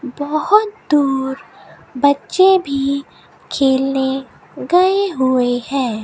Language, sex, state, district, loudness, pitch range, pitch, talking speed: Hindi, female, Rajasthan, Bikaner, -16 LUFS, 265-365 Hz, 280 Hz, 80 wpm